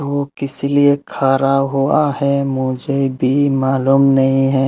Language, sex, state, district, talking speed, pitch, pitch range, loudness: Hindi, male, Tripura, Unakoti, 130 wpm, 135 Hz, 135-140 Hz, -15 LUFS